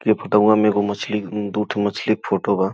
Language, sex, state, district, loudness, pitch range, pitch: Bhojpuri, male, Uttar Pradesh, Gorakhpur, -20 LUFS, 100-105 Hz, 105 Hz